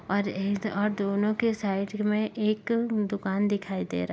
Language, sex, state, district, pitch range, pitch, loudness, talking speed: Hindi, female, Uttar Pradesh, Etah, 195-215 Hz, 205 Hz, -28 LUFS, 205 wpm